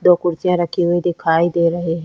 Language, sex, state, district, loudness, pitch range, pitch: Hindi, female, Chhattisgarh, Sukma, -17 LUFS, 170-175 Hz, 175 Hz